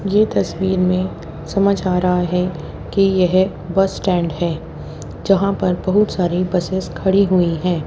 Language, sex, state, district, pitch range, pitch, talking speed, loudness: Hindi, female, Haryana, Jhajjar, 175-195 Hz, 185 Hz, 155 wpm, -18 LUFS